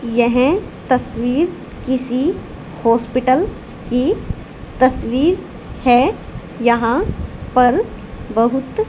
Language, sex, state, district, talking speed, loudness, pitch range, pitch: Hindi, female, Haryana, Charkhi Dadri, 70 wpm, -17 LUFS, 240-275 Hz, 255 Hz